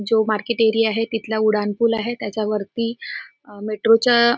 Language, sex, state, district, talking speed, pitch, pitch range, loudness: Marathi, female, Maharashtra, Nagpur, 165 wpm, 225 Hz, 215-230 Hz, -20 LUFS